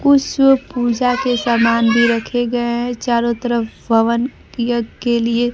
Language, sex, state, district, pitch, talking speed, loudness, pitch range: Hindi, female, Bihar, Kaimur, 240 Hz, 150 wpm, -16 LUFS, 235-245 Hz